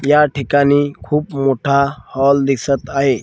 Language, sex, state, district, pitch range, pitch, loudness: Marathi, male, Maharashtra, Washim, 135-140 Hz, 140 Hz, -16 LUFS